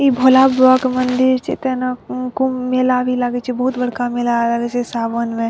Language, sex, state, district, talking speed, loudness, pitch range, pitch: Maithili, female, Bihar, Madhepura, 205 wpm, -16 LUFS, 245-255 Hz, 250 Hz